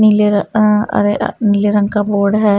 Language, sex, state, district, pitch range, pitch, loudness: Hindi, female, Haryana, Rohtak, 205-210 Hz, 205 Hz, -14 LUFS